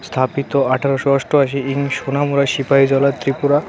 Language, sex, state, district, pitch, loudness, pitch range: Bengali, male, Tripura, West Tripura, 140 Hz, -17 LUFS, 135-140 Hz